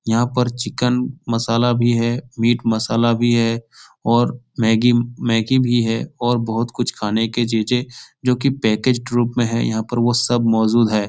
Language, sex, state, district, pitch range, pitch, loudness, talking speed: Hindi, male, Bihar, Jahanabad, 115-120 Hz, 120 Hz, -18 LUFS, 185 wpm